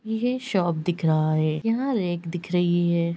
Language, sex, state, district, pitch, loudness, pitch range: Hindi, female, Bihar, Gaya, 175 Hz, -24 LUFS, 170-220 Hz